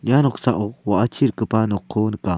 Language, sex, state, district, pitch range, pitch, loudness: Garo, male, Meghalaya, South Garo Hills, 105-125 Hz, 110 Hz, -20 LUFS